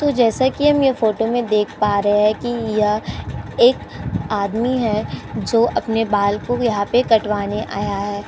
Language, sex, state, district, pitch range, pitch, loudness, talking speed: Hindi, female, Uttar Pradesh, Jyotiba Phule Nagar, 210-240 Hz, 220 Hz, -18 LUFS, 180 wpm